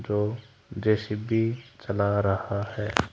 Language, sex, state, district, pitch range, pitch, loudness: Hindi, male, Haryana, Charkhi Dadri, 100-115 Hz, 105 Hz, -27 LUFS